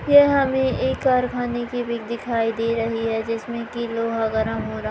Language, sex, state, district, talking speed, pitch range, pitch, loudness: Hindi, female, Bihar, Begusarai, 195 wpm, 225-245 Hz, 235 Hz, -22 LUFS